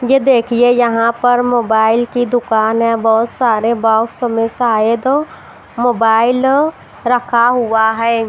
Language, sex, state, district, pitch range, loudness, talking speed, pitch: Hindi, female, Bihar, Katihar, 225-245 Hz, -13 LUFS, 125 wpm, 235 Hz